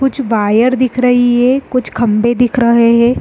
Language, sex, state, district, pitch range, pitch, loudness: Hindi, female, Chhattisgarh, Rajnandgaon, 235-255 Hz, 245 Hz, -12 LUFS